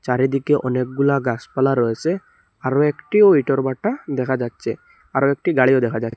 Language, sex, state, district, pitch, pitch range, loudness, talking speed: Bengali, male, Assam, Hailakandi, 135 Hz, 125-140 Hz, -19 LUFS, 145 wpm